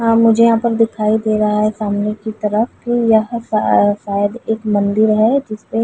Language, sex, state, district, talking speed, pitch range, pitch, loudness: Hindi, female, Bihar, Muzaffarpur, 195 wpm, 210-230 Hz, 220 Hz, -15 LUFS